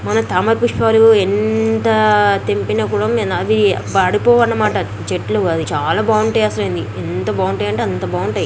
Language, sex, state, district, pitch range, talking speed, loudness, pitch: Telugu, female, Andhra Pradesh, Guntur, 205-225 Hz, 130 wpm, -15 LUFS, 220 Hz